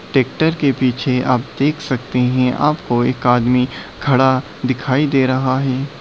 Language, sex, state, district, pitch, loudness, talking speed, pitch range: Hindi, male, Bihar, Bhagalpur, 130 Hz, -17 LUFS, 150 wpm, 125-140 Hz